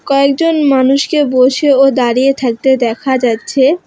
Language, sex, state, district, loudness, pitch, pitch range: Bengali, female, West Bengal, Alipurduar, -11 LUFS, 270 Hz, 255-280 Hz